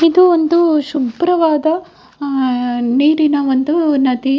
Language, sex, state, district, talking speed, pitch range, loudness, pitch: Kannada, female, Karnataka, Dakshina Kannada, 110 wpm, 265-330 Hz, -14 LUFS, 300 Hz